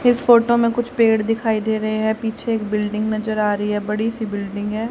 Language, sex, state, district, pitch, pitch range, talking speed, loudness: Hindi, female, Haryana, Jhajjar, 220 Hz, 210-230 Hz, 245 wpm, -19 LUFS